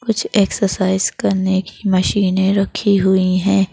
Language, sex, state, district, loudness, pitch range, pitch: Hindi, female, Madhya Pradesh, Bhopal, -16 LUFS, 190-200 Hz, 190 Hz